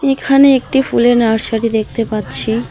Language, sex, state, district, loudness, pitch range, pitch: Bengali, female, West Bengal, Alipurduar, -13 LUFS, 225-270 Hz, 235 Hz